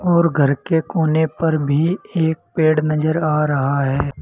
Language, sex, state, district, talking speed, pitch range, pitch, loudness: Hindi, male, Uttar Pradesh, Saharanpur, 170 wpm, 145-165 Hz, 155 Hz, -18 LUFS